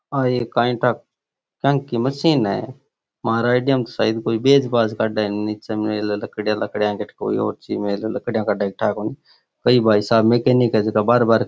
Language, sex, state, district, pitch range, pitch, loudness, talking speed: Rajasthani, male, Rajasthan, Churu, 105-125 Hz, 115 Hz, -20 LUFS, 85 wpm